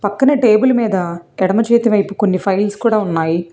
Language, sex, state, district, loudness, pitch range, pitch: Telugu, female, Telangana, Hyderabad, -15 LUFS, 185-230 Hz, 205 Hz